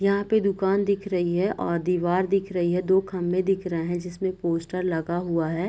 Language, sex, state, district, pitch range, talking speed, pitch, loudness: Hindi, female, Bihar, Gopalganj, 175-195 Hz, 230 wpm, 180 Hz, -25 LUFS